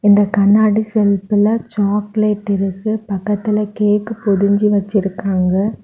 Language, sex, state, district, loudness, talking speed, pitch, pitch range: Tamil, female, Tamil Nadu, Kanyakumari, -16 LUFS, 90 wpm, 205 Hz, 200-215 Hz